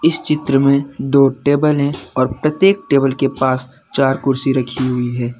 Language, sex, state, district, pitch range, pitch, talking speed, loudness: Hindi, male, Jharkhand, Deoghar, 130-145 Hz, 135 Hz, 180 wpm, -16 LUFS